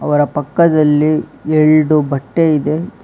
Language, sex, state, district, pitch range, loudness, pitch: Kannada, male, Karnataka, Bangalore, 150-155 Hz, -13 LUFS, 155 Hz